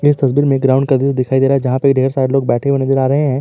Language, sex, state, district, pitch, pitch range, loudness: Hindi, male, Jharkhand, Garhwa, 135 Hz, 130-140 Hz, -14 LUFS